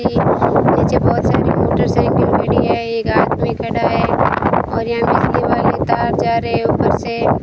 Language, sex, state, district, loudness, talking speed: Hindi, female, Rajasthan, Bikaner, -15 LUFS, 170 wpm